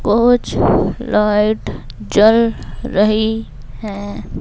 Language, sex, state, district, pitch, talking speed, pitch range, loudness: Hindi, female, Madhya Pradesh, Bhopal, 210 Hz, 70 wpm, 180-220 Hz, -15 LUFS